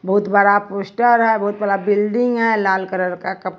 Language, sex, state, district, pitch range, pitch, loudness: Hindi, female, Bihar, West Champaran, 190-220 Hz, 205 Hz, -17 LUFS